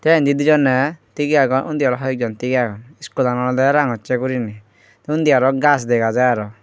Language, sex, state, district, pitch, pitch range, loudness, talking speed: Chakma, male, Tripura, Unakoti, 130 Hz, 120-145 Hz, -17 LUFS, 180 wpm